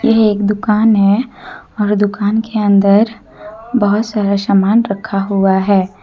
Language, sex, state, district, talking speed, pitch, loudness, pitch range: Hindi, female, Jharkhand, Deoghar, 140 wpm, 210 Hz, -13 LUFS, 200-220 Hz